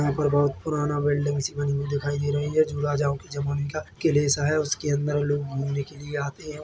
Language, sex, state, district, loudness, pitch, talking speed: Hindi, male, Chhattisgarh, Bilaspur, -26 LUFS, 145 Hz, 245 wpm